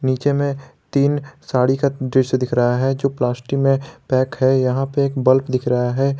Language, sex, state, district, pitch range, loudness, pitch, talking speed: Hindi, male, Jharkhand, Garhwa, 130-140 Hz, -19 LUFS, 130 Hz, 205 wpm